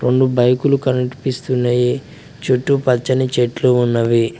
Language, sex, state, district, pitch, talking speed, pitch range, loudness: Telugu, male, Telangana, Mahabubabad, 125 Hz, 95 wpm, 120-130 Hz, -16 LUFS